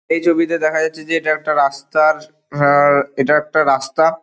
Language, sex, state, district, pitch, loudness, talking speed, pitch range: Bengali, male, West Bengal, Dakshin Dinajpur, 155 Hz, -16 LUFS, 215 wpm, 145-160 Hz